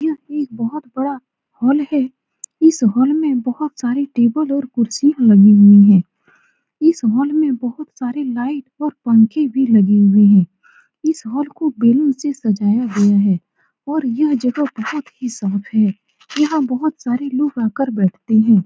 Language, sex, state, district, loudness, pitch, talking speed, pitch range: Hindi, female, Bihar, Saran, -16 LUFS, 260 Hz, 165 wpm, 220-295 Hz